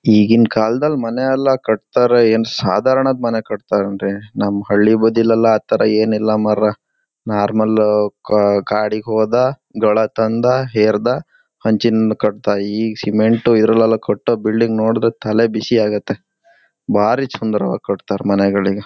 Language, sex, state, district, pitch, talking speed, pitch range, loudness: Kannada, male, Karnataka, Shimoga, 110 Hz, 120 wpm, 105-115 Hz, -16 LUFS